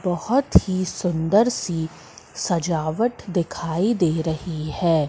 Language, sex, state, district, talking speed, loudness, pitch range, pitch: Hindi, female, Madhya Pradesh, Katni, 105 wpm, -22 LUFS, 160-190 Hz, 175 Hz